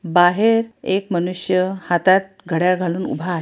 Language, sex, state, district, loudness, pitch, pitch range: Marathi, female, Maharashtra, Pune, -19 LUFS, 185 Hz, 175-195 Hz